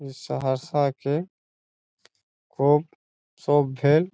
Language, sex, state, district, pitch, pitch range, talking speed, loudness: Maithili, male, Bihar, Saharsa, 140 Hz, 130-150 Hz, 85 wpm, -24 LUFS